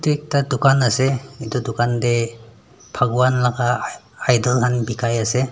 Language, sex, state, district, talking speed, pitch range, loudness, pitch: Nagamese, male, Nagaland, Dimapur, 140 wpm, 120-130 Hz, -19 LUFS, 125 Hz